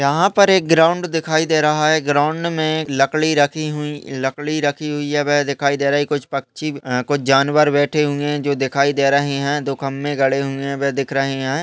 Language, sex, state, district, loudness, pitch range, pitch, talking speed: Hindi, male, Maharashtra, Aurangabad, -18 LUFS, 140-155 Hz, 145 Hz, 220 wpm